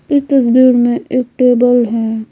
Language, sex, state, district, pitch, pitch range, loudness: Hindi, female, Bihar, Patna, 245 Hz, 240-255 Hz, -12 LUFS